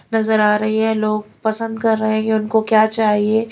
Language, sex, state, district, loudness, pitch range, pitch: Hindi, female, Chhattisgarh, Raipur, -17 LUFS, 215-220 Hz, 220 Hz